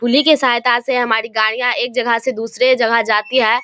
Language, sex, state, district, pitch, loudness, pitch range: Hindi, female, Bihar, Samastipur, 240 Hz, -15 LUFS, 225-255 Hz